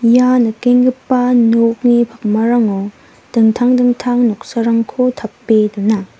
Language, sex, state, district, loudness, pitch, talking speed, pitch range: Garo, female, Meghalaya, West Garo Hills, -13 LUFS, 235 Hz, 85 wpm, 220-245 Hz